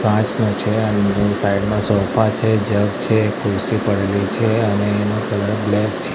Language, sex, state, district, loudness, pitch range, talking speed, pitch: Gujarati, male, Gujarat, Gandhinagar, -18 LUFS, 100-110 Hz, 175 wpm, 105 Hz